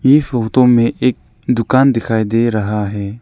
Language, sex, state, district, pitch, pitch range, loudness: Hindi, male, Arunachal Pradesh, Lower Dibang Valley, 115 Hz, 110-125 Hz, -14 LUFS